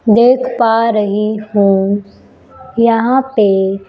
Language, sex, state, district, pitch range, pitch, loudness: Hindi, female, Chhattisgarh, Raipur, 200-235 Hz, 215 Hz, -13 LUFS